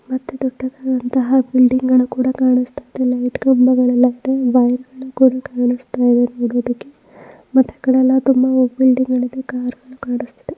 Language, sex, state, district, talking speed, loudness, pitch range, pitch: Kannada, female, Karnataka, Mysore, 130 wpm, -16 LUFS, 250-260 Hz, 255 Hz